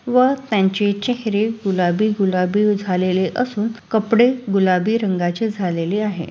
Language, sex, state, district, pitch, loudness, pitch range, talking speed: Marathi, female, Maharashtra, Sindhudurg, 205 Hz, -19 LUFS, 185-225 Hz, 115 wpm